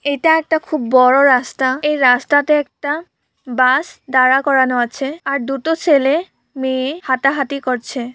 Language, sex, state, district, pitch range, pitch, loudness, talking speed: Bengali, female, West Bengal, Purulia, 260-295 Hz, 275 Hz, -15 LUFS, 135 wpm